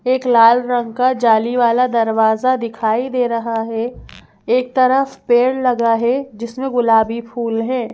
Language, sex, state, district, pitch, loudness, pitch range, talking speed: Hindi, female, Madhya Pradesh, Bhopal, 240 Hz, -16 LUFS, 230-255 Hz, 150 wpm